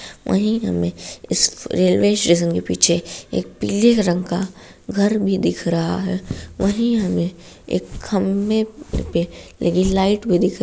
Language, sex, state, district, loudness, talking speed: Hindi, female, Bihar, Darbhanga, -19 LUFS, 145 wpm